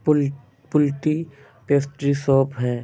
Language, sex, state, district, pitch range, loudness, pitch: Hindi, male, Bihar, Kishanganj, 135-145 Hz, -22 LUFS, 140 Hz